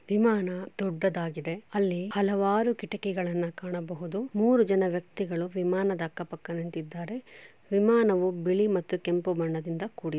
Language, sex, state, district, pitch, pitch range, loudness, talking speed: Kannada, female, Karnataka, Chamarajanagar, 185 Hz, 175-205 Hz, -29 LUFS, 105 wpm